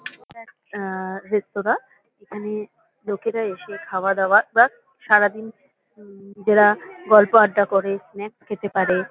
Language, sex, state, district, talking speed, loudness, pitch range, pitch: Bengali, female, West Bengal, Kolkata, 110 wpm, -20 LUFS, 195-215 Hz, 205 Hz